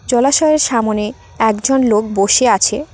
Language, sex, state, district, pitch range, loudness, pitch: Bengali, female, West Bengal, Cooch Behar, 215-270 Hz, -13 LUFS, 230 Hz